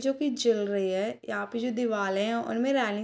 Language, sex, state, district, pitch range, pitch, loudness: Hindi, female, Bihar, Sitamarhi, 205-245 Hz, 230 Hz, -28 LUFS